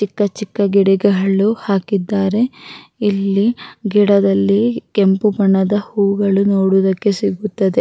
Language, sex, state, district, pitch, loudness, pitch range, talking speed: Kannada, female, Karnataka, Raichur, 200 Hz, -16 LUFS, 195-210 Hz, 85 wpm